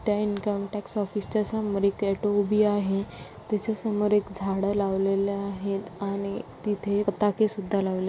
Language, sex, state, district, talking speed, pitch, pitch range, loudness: Marathi, female, Maharashtra, Aurangabad, 155 wpm, 205 Hz, 195-210 Hz, -27 LUFS